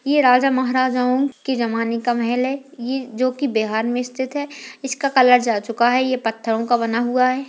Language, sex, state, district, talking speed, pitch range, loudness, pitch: Hindi, female, Bihar, Jamui, 200 wpm, 235-260 Hz, -19 LUFS, 250 Hz